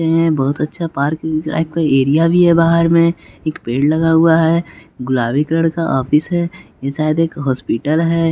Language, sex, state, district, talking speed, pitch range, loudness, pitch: Hindi, male, Bihar, West Champaran, 180 wpm, 145-165 Hz, -15 LUFS, 160 Hz